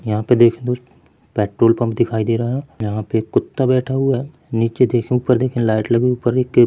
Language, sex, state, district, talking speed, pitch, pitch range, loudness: Hindi, male, Chhattisgarh, Bilaspur, 225 wpm, 120 Hz, 115-125 Hz, -18 LUFS